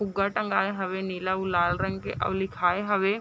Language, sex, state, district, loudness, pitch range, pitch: Chhattisgarhi, female, Chhattisgarh, Raigarh, -27 LUFS, 180-200 Hz, 190 Hz